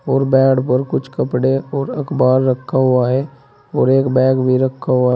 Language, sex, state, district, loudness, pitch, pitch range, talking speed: Hindi, male, Uttar Pradesh, Saharanpur, -16 LUFS, 130 Hz, 130-135 Hz, 185 wpm